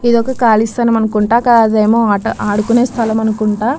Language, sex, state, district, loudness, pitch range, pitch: Telugu, female, Andhra Pradesh, Krishna, -13 LUFS, 215-235 Hz, 225 Hz